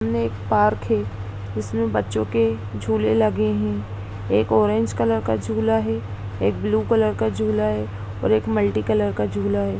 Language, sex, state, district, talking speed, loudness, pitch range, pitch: Hindi, female, Bihar, Sitamarhi, 185 wpm, -22 LUFS, 100-110 Hz, 105 Hz